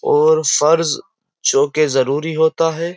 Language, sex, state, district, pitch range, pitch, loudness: Hindi, male, Uttar Pradesh, Jyotiba Phule Nagar, 150-170 Hz, 160 Hz, -16 LUFS